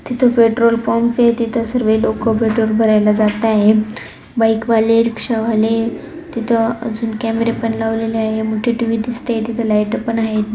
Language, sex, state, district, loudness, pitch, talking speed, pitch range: Marathi, female, Maharashtra, Dhule, -16 LUFS, 225 Hz, 150 wpm, 220-230 Hz